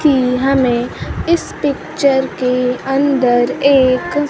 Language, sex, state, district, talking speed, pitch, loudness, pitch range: Hindi, female, Bihar, Kaimur, 100 wpm, 265 Hz, -15 LUFS, 250-280 Hz